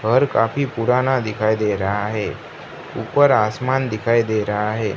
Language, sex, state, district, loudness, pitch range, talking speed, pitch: Hindi, male, Gujarat, Gandhinagar, -19 LUFS, 105-125 Hz, 155 wpm, 110 Hz